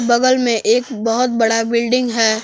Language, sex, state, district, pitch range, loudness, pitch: Hindi, female, Jharkhand, Palamu, 225-245 Hz, -16 LUFS, 235 Hz